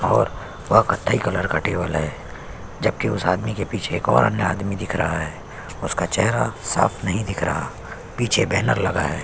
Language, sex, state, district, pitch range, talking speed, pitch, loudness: Hindi, male, Chhattisgarh, Sukma, 80-100 Hz, 195 wpm, 90 Hz, -22 LUFS